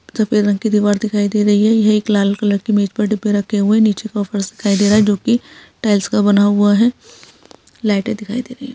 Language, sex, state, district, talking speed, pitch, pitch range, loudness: Hindi, female, Bihar, Saharsa, 245 wpm, 210 Hz, 205-220 Hz, -15 LUFS